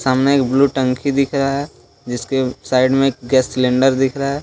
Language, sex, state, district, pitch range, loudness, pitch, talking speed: Hindi, male, Jharkhand, Deoghar, 130-140 Hz, -17 LUFS, 135 Hz, 205 wpm